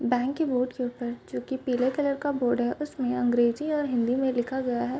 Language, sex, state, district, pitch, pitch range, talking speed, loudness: Hindi, female, Bihar, Bhagalpur, 250 Hz, 245-270 Hz, 230 wpm, -27 LUFS